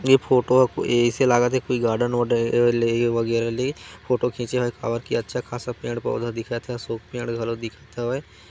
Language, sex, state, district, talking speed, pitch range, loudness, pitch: Chhattisgarhi, male, Chhattisgarh, Korba, 190 wpm, 115-125 Hz, -23 LUFS, 120 Hz